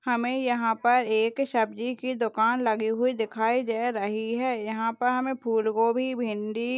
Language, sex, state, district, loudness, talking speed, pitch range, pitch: Hindi, female, Rajasthan, Churu, -26 LUFS, 170 wpm, 220-250 Hz, 235 Hz